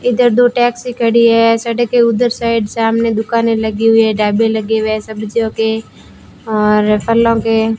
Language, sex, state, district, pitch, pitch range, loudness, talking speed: Hindi, female, Rajasthan, Bikaner, 225 Hz, 220-235 Hz, -13 LUFS, 175 wpm